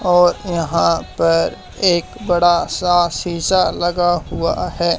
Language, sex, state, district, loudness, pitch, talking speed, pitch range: Hindi, male, Haryana, Charkhi Dadri, -17 LUFS, 175 Hz, 120 wpm, 170-175 Hz